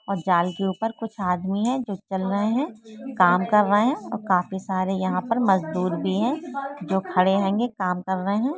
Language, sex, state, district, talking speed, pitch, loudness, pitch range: Hindi, female, West Bengal, Jalpaiguri, 210 wpm, 195 Hz, -23 LUFS, 185-225 Hz